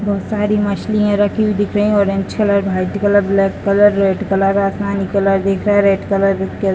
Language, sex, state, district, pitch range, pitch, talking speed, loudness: Hindi, female, Bihar, Jahanabad, 195-205 Hz, 200 Hz, 220 wpm, -15 LUFS